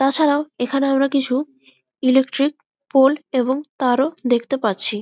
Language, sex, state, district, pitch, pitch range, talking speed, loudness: Bengali, female, West Bengal, Malda, 270 Hz, 250-280 Hz, 130 wpm, -19 LUFS